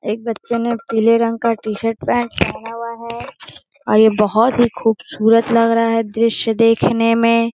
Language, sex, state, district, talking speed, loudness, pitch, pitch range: Hindi, female, Bihar, Gaya, 185 wpm, -16 LUFS, 230 Hz, 225-230 Hz